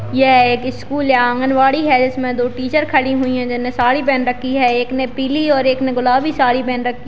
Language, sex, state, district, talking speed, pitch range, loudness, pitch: Hindi, female, Bihar, Jahanabad, 235 wpm, 250-265 Hz, -15 LUFS, 255 Hz